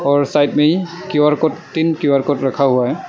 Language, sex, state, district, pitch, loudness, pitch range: Hindi, male, Arunachal Pradesh, Lower Dibang Valley, 150 Hz, -16 LUFS, 140-160 Hz